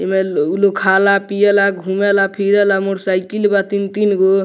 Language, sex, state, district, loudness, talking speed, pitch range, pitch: Bhojpuri, male, Bihar, Muzaffarpur, -15 LUFS, 135 wpm, 190-200 Hz, 195 Hz